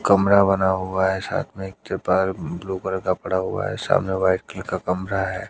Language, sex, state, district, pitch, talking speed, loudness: Hindi, male, Haryana, Jhajjar, 95 Hz, 220 wpm, -22 LUFS